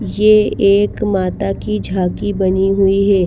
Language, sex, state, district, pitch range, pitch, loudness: Hindi, female, Bihar, Kaimur, 185-200 Hz, 195 Hz, -15 LUFS